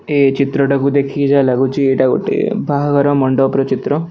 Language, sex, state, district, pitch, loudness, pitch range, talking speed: Odia, male, Odisha, Khordha, 140 Hz, -14 LUFS, 135-140 Hz, 145 wpm